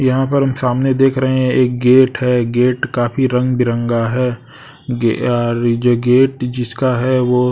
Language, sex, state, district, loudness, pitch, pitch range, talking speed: Hindi, male, Odisha, Sambalpur, -15 LUFS, 125 Hz, 120-130 Hz, 185 wpm